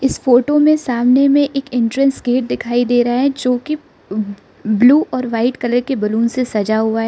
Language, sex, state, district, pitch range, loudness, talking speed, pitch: Hindi, female, Arunachal Pradesh, Lower Dibang Valley, 235-275 Hz, -15 LUFS, 205 wpm, 245 Hz